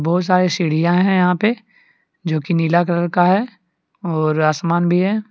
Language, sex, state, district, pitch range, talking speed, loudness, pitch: Hindi, male, Jharkhand, Deoghar, 170-195 Hz, 170 wpm, -17 LUFS, 180 Hz